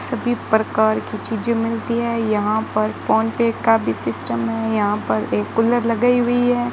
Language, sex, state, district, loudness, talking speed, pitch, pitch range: Hindi, female, Rajasthan, Bikaner, -19 LUFS, 185 wpm, 225 Hz, 210-235 Hz